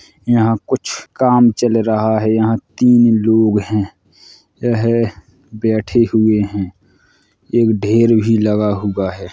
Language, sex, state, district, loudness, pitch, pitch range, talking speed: Hindi, male, Uttar Pradesh, Hamirpur, -15 LUFS, 110 Hz, 105-115 Hz, 135 wpm